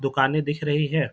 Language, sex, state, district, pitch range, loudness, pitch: Hindi, male, Bihar, Jamui, 135-150 Hz, -23 LUFS, 145 Hz